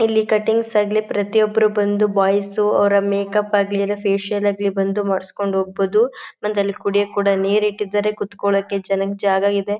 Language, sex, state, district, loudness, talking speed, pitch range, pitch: Kannada, female, Karnataka, Mysore, -19 LUFS, 155 wpm, 200-210 Hz, 205 Hz